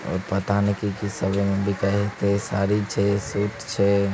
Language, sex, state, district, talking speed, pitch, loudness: Angika, male, Bihar, Begusarai, 130 wpm, 100 Hz, -23 LUFS